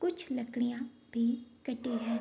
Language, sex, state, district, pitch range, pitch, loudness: Hindi, female, Bihar, Madhepura, 235-255 Hz, 245 Hz, -35 LUFS